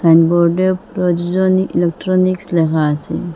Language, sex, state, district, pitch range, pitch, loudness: Bengali, female, Assam, Hailakandi, 170-185 Hz, 175 Hz, -15 LUFS